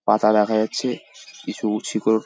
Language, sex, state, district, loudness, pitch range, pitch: Bengali, male, West Bengal, Paschim Medinipur, -21 LUFS, 105-110 Hz, 110 Hz